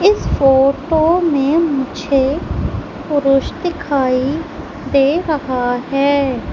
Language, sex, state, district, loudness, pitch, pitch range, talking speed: Hindi, female, Madhya Pradesh, Umaria, -16 LUFS, 280 Hz, 270-315 Hz, 85 wpm